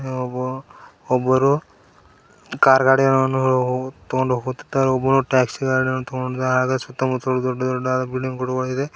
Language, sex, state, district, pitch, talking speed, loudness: Kannada, male, Karnataka, Koppal, 130 Hz, 105 wpm, -20 LUFS